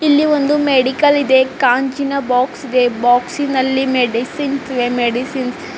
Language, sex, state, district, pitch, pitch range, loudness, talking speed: Kannada, female, Karnataka, Bidar, 260 Hz, 250-285 Hz, -15 LUFS, 135 wpm